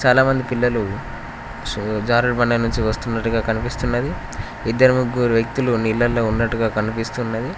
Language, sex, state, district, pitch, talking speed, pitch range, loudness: Telugu, male, Telangana, Mahabubabad, 115 Hz, 105 wpm, 115-125 Hz, -20 LUFS